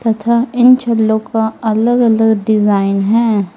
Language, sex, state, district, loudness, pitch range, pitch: Hindi, female, Uttar Pradesh, Lalitpur, -12 LUFS, 215-235 Hz, 220 Hz